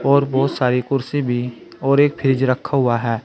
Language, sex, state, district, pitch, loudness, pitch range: Hindi, male, Uttar Pradesh, Saharanpur, 135 Hz, -18 LUFS, 125-140 Hz